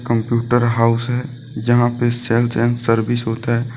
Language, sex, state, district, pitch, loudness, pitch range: Hindi, male, Jharkhand, Deoghar, 120 Hz, -18 LUFS, 115-120 Hz